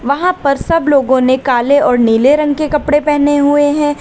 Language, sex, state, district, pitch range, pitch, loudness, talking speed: Hindi, female, Uttar Pradesh, Lalitpur, 270-295 Hz, 290 Hz, -12 LUFS, 210 wpm